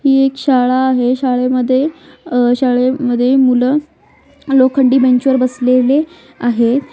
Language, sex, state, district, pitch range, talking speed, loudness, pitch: Marathi, female, Maharashtra, Sindhudurg, 250-270 Hz, 105 wpm, -13 LUFS, 260 Hz